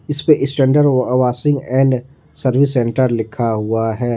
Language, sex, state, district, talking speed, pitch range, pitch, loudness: Hindi, male, Jharkhand, Ranchi, 145 wpm, 120-140 Hz, 130 Hz, -16 LUFS